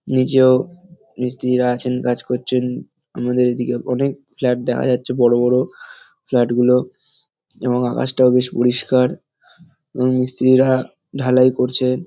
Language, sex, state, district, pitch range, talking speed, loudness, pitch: Bengali, male, West Bengal, North 24 Parganas, 125-130 Hz, 115 wpm, -17 LUFS, 125 Hz